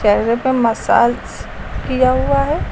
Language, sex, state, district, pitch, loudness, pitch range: Hindi, female, Uttar Pradesh, Lucknow, 255 Hz, -15 LUFS, 230-260 Hz